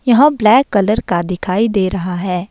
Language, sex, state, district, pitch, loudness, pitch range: Hindi, female, Himachal Pradesh, Shimla, 200 Hz, -14 LUFS, 180-230 Hz